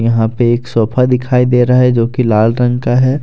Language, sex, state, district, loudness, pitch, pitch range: Hindi, male, Jharkhand, Deoghar, -12 LUFS, 125 Hz, 115-125 Hz